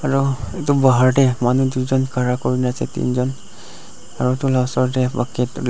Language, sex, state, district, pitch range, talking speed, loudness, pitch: Nagamese, male, Nagaland, Dimapur, 125-130 Hz, 180 wpm, -19 LUFS, 130 Hz